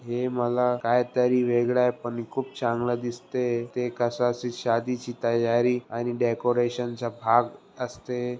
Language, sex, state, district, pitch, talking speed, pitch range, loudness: Marathi, male, Maharashtra, Aurangabad, 120 Hz, 130 wpm, 120-125 Hz, -26 LUFS